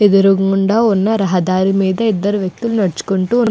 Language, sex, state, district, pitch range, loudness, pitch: Telugu, female, Andhra Pradesh, Anantapur, 190-215 Hz, -15 LUFS, 195 Hz